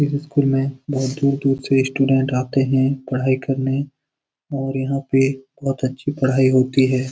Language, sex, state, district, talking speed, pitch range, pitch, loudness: Hindi, male, Bihar, Lakhisarai, 160 wpm, 130-140 Hz, 135 Hz, -20 LUFS